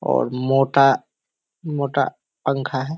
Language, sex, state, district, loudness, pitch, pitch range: Hindi, male, Bihar, Kishanganj, -20 LUFS, 135 Hz, 130-140 Hz